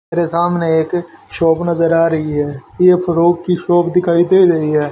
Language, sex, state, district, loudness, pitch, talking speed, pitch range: Hindi, male, Haryana, Charkhi Dadri, -14 LUFS, 170 Hz, 195 wpm, 160-175 Hz